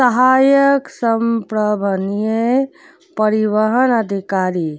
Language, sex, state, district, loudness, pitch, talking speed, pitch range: Bhojpuri, female, Uttar Pradesh, Deoria, -16 LUFS, 225 Hz, 60 wpm, 210-260 Hz